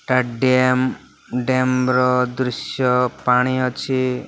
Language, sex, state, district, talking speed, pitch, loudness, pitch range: Odia, male, Odisha, Malkangiri, 100 wpm, 125 Hz, -19 LUFS, 125-130 Hz